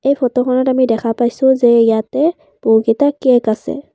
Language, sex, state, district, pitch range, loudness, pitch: Assamese, female, Assam, Kamrup Metropolitan, 230-270 Hz, -14 LUFS, 250 Hz